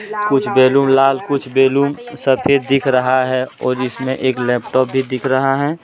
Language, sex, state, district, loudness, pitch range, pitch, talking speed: Hindi, male, Jharkhand, Deoghar, -16 LUFS, 130-140 Hz, 135 Hz, 175 wpm